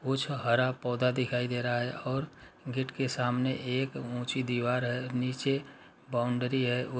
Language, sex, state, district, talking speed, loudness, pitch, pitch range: Hindi, male, Uttar Pradesh, Muzaffarnagar, 165 wpm, -31 LUFS, 125 Hz, 125-135 Hz